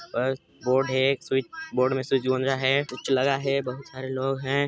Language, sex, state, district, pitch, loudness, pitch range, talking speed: Hindi, male, Chhattisgarh, Sarguja, 135 Hz, -26 LUFS, 130-135 Hz, 220 wpm